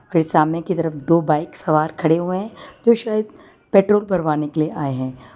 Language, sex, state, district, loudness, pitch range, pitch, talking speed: Hindi, female, Gujarat, Valsad, -19 LUFS, 155-190 Hz, 165 Hz, 200 wpm